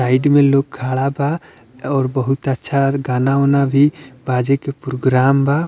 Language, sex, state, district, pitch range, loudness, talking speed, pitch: Bhojpuri, male, Bihar, Muzaffarpur, 130-140 Hz, -17 LUFS, 160 wpm, 135 Hz